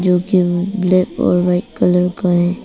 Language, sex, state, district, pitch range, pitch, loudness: Hindi, female, Arunachal Pradesh, Papum Pare, 180-185 Hz, 180 Hz, -15 LUFS